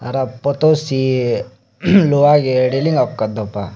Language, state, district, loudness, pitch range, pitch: Nyishi, Arunachal Pradesh, Papum Pare, -16 LUFS, 120-145 Hz, 130 Hz